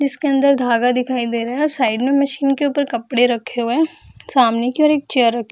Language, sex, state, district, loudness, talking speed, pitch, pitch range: Hindi, female, Bihar, Jamui, -17 LUFS, 250 wpm, 255 Hz, 235-280 Hz